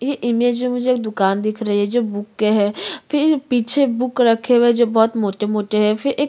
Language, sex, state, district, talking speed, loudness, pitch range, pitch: Hindi, female, Chhattisgarh, Korba, 250 wpm, -18 LUFS, 210-250 Hz, 235 Hz